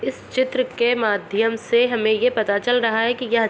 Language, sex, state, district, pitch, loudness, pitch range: Hindi, female, Bihar, Madhepura, 235 Hz, -20 LUFS, 220-245 Hz